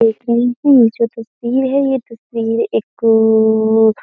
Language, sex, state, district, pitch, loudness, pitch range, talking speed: Hindi, female, Uttar Pradesh, Jyotiba Phule Nagar, 230 Hz, -14 LUFS, 220-245 Hz, 135 wpm